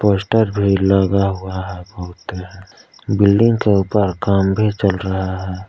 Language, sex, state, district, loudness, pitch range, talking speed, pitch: Hindi, male, Jharkhand, Palamu, -16 LUFS, 95-100 Hz, 150 wpm, 95 Hz